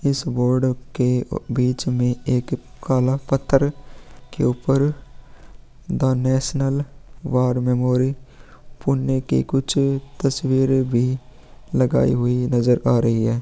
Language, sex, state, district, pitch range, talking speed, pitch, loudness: Hindi, male, Bihar, Vaishali, 125-135 Hz, 115 wpm, 130 Hz, -21 LUFS